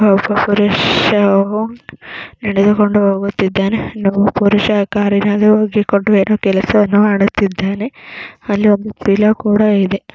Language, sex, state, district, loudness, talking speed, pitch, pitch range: Kannada, female, Karnataka, Mysore, -13 LUFS, 90 wpm, 205 Hz, 200-210 Hz